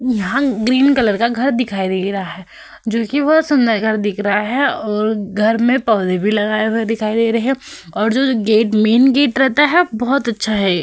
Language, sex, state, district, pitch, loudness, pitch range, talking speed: Hindi, female, Uttar Pradesh, Hamirpur, 225 Hz, -15 LUFS, 210-260 Hz, 210 wpm